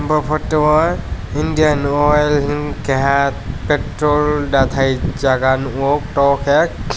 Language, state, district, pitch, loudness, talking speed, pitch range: Kokborok, Tripura, West Tripura, 145 Hz, -16 LUFS, 110 wpm, 135-150 Hz